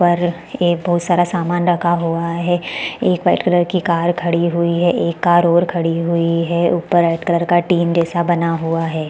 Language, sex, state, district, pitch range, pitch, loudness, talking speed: Hindi, female, Chhattisgarh, Balrampur, 170-175 Hz, 170 Hz, -16 LUFS, 210 wpm